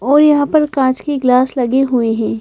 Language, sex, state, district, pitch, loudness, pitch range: Hindi, female, Madhya Pradesh, Bhopal, 265 Hz, -14 LUFS, 250-290 Hz